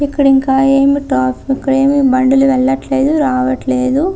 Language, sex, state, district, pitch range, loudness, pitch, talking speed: Telugu, female, Andhra Pradesh, Visakhapatnam, 260-280 Hz, -12 LUFS, 270 Hz, 145 wpm